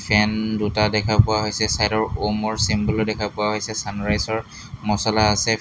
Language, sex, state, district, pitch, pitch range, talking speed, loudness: Assamese, male, Assam, Hailakandi, 105 Hz, 105-110 Hz, 180 wpm, -21 LUFS